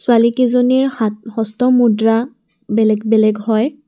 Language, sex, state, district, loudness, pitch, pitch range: Assamese, female, Assam, Kamrup Metropolitan, -15 LUFS, 230 Hz, 220-250 Hz